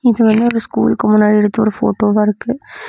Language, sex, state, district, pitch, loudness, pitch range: Tamil, female, Tamil Nadu, Namakkal, 220 Hz, -14 LUFS, 210-240 Hz